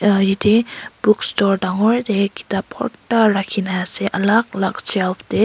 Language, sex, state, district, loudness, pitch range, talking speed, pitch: Nagamese, female, Nagaland, Kohima, -18 LUFS, 195-220 Hz, 130 wpm, 205 Hz